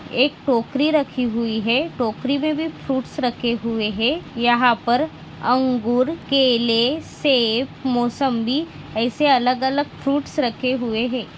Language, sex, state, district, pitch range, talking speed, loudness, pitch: Hindi, female, Maharashtra, Nagpur, 235-275 Hz, 130 wpm, -20 LUFS, 250 Hz